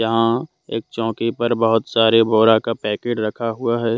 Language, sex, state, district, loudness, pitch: Hindi, male, Jharkhand, Deoghar, -18 LUFS, 115 Hz